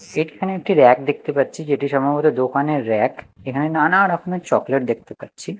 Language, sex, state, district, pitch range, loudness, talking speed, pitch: Bengali, male, Odisha, Nuapada, 130-155 Hz, -19 LUFS, 160 wpm, 145 Hz